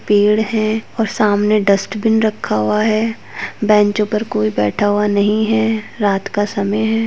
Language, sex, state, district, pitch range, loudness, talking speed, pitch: Hindi, female, Uttarakhand, Tehri Garhwal, 205-220 Hz, -16 LUFS, 160 wpm, 210 Hz